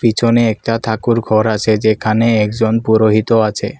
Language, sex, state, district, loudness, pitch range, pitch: Bengali, male, Assam, Kamrup Metropolitan, -14 LUFS, 110-115 Hz, 110 Hz